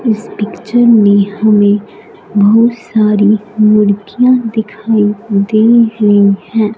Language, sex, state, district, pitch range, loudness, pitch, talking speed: Hindi, female, Punjab, Fazilka, 205-225 Hz, -10 LUFS, 215 Hz, 90 wpm